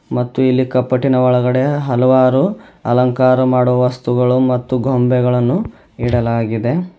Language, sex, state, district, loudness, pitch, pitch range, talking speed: Kannada, male, Karnataka, Bidar, -15 LUFS, 125 Hz, 125-130 Hz, 95 wpm